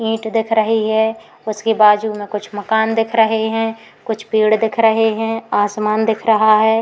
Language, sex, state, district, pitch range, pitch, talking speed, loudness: Hindi, female, Uttar Pradesh, Muzaffarnagar, 215-225 Hz, 220 Hz, 185 wpm, -16 LUFS